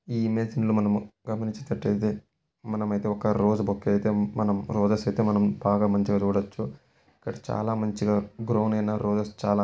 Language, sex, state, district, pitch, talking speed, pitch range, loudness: Telugu, male, Telangana, Karimnagar, 105 Hz, 150 wpm, 105-110 Hz, -26 LUFS